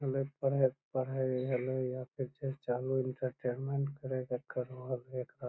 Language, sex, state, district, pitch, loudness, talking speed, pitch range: Magahi, male, Bihar, Lakhisarai, 130 Hz, -36 LUFS, 85 wpm, 125-135 Hz